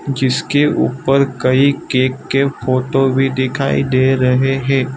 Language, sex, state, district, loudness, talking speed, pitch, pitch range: Hindi, male, Gujarat, Valsad, -15 LUFS, 130 wpm, 135 Hz, 130-135 Hz